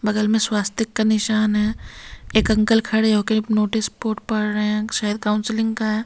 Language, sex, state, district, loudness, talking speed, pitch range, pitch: Hindi, female, Bihar, Katihar, -20 LUFS, 190 wpm, 210-220 Hz, 215 Hz